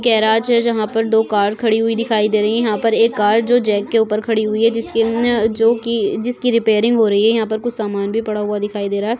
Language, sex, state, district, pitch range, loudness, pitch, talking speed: Hindi, female, Goa, North and South Goa, 210-230 Hz, -16 LUFS, 220 Hz, 280 wpm